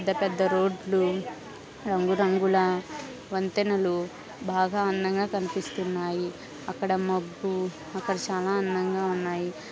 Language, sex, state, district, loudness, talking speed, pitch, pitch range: Telugu, female, Andhra Pradesh, Krishna, -28 LUFS, 100 wpm, 190 Hz, 185-195 Hz